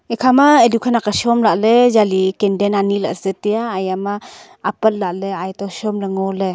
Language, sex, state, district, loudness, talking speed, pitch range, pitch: Wancho, female, Arunachal Pradesh, Longding, -16 LUFS, 155 wpm, 190-230 Hz, 205 Hz